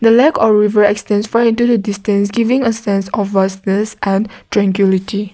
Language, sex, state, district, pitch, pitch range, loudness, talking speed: English, female, Nagaland, Kohima, 205 Hz, 200-225 Hz, -14 LUFS, 145 wpm